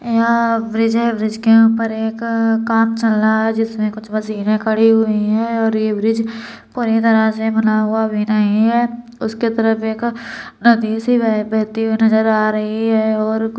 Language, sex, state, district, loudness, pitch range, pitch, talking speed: Hindi, female, Uttar Pradesh, Deoria, -16 LUFS, 220-225 Hz, 225 Hz, 185 wpm